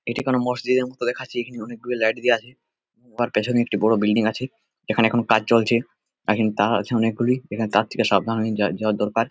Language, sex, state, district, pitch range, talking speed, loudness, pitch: Bengali, male, West Bengal, Purulia, 110-120 Hz, 220 wpm, -22 LUFS, 115 Hz